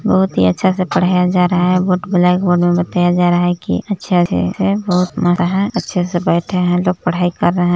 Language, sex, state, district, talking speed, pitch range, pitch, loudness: Hindi, male, Chhattisgarh, Balrampur, 240 wpm, 175-180 Hz, 180 Hz, -15 LUFS